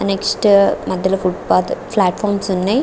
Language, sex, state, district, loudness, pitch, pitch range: Telugu, female, Andhra Pradesh, Guntur, -16 LUFS, 195 Hz, 185-205 Hz